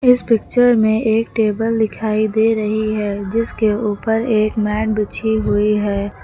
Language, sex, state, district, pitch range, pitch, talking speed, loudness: Hindi, female, Uttar Pradesh, Lucknow, 210-225 Hz, 220 Hz, 155 wpm, -17 LUFS